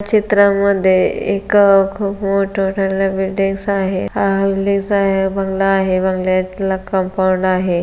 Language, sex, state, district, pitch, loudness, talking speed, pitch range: Marathi, female, Maharashtra, Solapur, 195 Hz, -15 LUFS, 100 wpm, 190-200 Hz